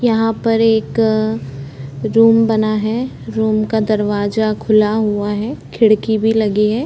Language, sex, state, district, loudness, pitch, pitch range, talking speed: Hindi, female, Chhattisgarh, Korba, -15 LUFS, 220 Hz, 210-225 Hz, 140 wpm